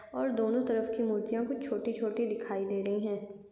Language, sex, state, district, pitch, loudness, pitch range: Hindi, female, Chhattisgarh, Kabirdham, 225 Hz, -33 LUFS, 205-230 Hz